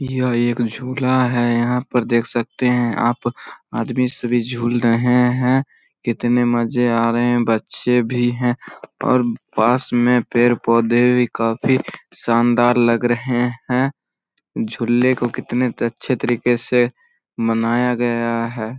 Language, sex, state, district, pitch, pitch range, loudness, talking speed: Hindi, male, Bihar, Samastipur, 120 Hz, 120-125 Hz, -18 LUFS, 135 wpm